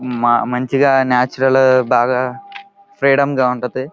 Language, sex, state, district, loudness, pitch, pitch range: Telugu, male, Andhra Pradesh, Krishna, -15 LUFS, 130 Hz, 125-140 Hz